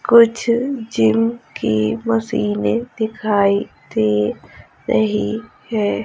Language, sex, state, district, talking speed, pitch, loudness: Hindi, female, Madhya Pradesh, Umaria, 80 wpm, 200 Hz, -18 LUFS